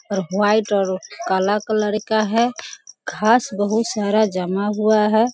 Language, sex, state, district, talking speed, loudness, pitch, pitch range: Hindi, female, Bihar, Sitamarhi, 145 wpm, -19 LUFS, 210 Hz, 200-220 Hz